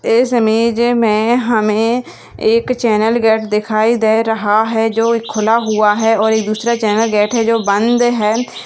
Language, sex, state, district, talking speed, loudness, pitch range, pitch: Hindi, female, Bihar, Purnia, 165 wpm, -14 LUFS, 215-235 Hz, 225 Hz